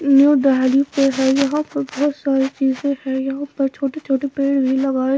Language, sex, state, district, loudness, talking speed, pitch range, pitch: Hindi, female, Bihar, Patna, -18 LUFS, 160 wpm, 270-280 Hz, 275 Hz